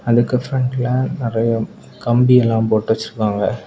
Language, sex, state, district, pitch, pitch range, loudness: Tamil, male, Tamil Nadu, Kanyakumari, 115 Hz, 110-125 Hz, -17 LUFS